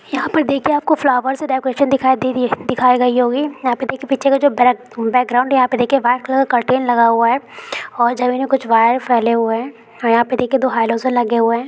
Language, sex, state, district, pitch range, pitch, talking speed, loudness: Hindi, female, Bihar, Bhagalpur, 240-265 Hz, 250 Hz, 255 wpm, -16 LUFS